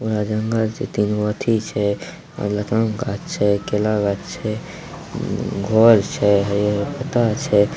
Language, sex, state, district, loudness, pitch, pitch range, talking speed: Maithili, male, Bihar, Samastipur, -20 LUFS, 105 Hz, 105-115 Hz, 155 wpm